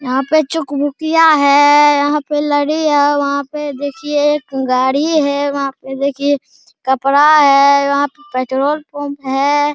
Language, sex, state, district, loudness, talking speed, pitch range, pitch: Hindi, male, Bihar, Araria, -14 LUFS, 150 wpm, 280-295 Hz, 285 Hz